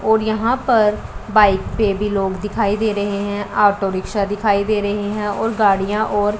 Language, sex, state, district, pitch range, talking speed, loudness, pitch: Hindi, female, Punjab, Pathankot, 200-215 Hz, 195 wpm, -18 LUFS, 205 Hz